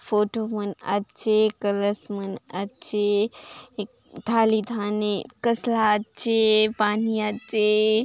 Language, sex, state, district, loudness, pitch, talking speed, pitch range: Halbi, female, Chhattisgarh, Bastar, -24 LUFS, 215 Hz, 90 wpm, 210-225 Hz